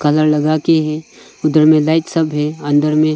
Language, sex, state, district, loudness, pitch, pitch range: Hindi, male, Arunachal Pradesh, Longding, -14 LUFS, 155 Hz, 150-155 Hz